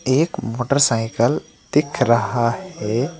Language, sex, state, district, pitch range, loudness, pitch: Hindi, male, West Bengal, Alipurduar, 115-140 Hz, -19 LUFS, 120 Hz